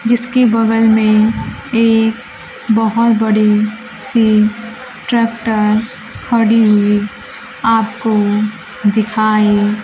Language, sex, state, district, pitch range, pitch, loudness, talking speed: Hindi, female, Bihar, Kaimur, 215-230 Hz, 220 Hz, -13 LUFS, 75 wpm